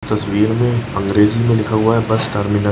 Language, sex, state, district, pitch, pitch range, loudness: Bhojpuri, male, Uttar Pradesh, Gorakhpur, 110 Hz, 105-115 Hz, -16 LUFS